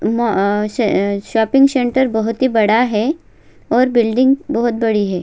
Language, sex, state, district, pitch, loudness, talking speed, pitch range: Marathi, female, Maharashtra, Solapur, 230 Hz, -15 LUFS, 160 wpm, 215-255 Hz